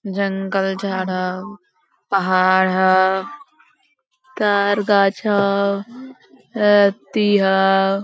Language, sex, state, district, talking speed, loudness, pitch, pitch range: Hindi, female, Jharkhand, Sahebganj, 75 wpm, -17 LUFS, 200 Hz, 190-205 Hz